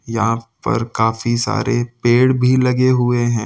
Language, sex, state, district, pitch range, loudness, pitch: Hindi, male, Delhi, New Delhi, 115-125 Hz, -17 LUFS, 120 Hz